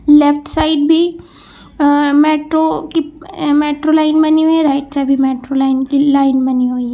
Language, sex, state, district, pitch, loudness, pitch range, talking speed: Hindi, female, Uttar Pradesh, Lucknow, 290 Hz, -13 LUFS, 275-315 Hz, 180 wpm